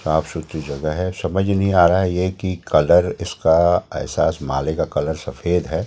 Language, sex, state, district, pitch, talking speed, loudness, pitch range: Hindi, male, Delhi, New Delhi, 85 Hz, 195 wpm, -19 LUFS, 80-90 Hz